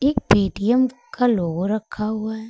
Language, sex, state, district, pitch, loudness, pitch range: Hindi, female, Uttar Pradesh, Lucknow, 220 Hz, -21 LUFS, 205-240 Hz